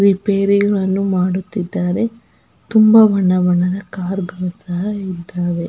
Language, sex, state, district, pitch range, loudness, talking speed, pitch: Kannada, female, Karnataka, Belgaum, 180-200 Hz, -16 LUFS, 105 wpm, 190 Hz